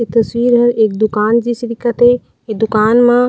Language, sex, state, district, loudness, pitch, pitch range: Chhattisgarhi, female, Chhattisgarh, Raigarh, -13 LUFS, 235 Hz, 220-240 Hz